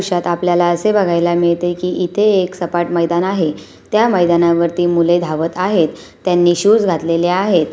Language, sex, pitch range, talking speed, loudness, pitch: Awadhi, female, 170-185 Hz, 155 wpm, -15 LUFS, 175 Hz